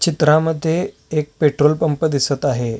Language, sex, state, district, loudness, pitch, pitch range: Marathi, male, Maharashtra, Solapur, -18 LUFS, 150 Hz, 140-160 Hz